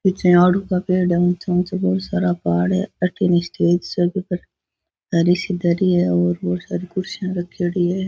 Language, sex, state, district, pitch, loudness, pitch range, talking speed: Rajasthani, female, Rajasthan, Nagaur, 180 Hz, -19 LUFS, 175-185 Hz, 180 wpm